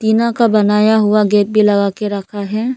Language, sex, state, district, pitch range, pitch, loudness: Hindi, female, Arunachal Pradesh, Lower Dibang Valley, 205-220 Hz, 210 Hz, -14 LUFS